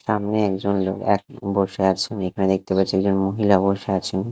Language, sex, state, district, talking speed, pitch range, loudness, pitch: Bengali, male, Odisha, Khordha, 180 wpm, 95-100 Hz, -21 LUFS, 95 Hz